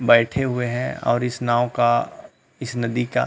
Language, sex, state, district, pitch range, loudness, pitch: Hindi, male, Chhattisgarh, Rajnandgaon, 120-125 Hz, -21 LUFS, 120 Hz